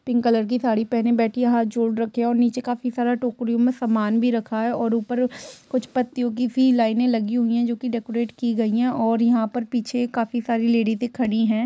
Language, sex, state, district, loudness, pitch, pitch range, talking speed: Hindi, female, Bihar, East Champaran, -22 LUFS, 235 Hz, 230-245 Hz, 230 wpm